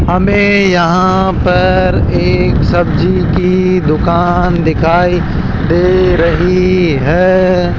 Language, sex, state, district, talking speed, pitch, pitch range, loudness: Hindi, male, Rajasthan, Jaipur, 85 wpm, 180 Hz, 170-185 Hz, -11 LUFS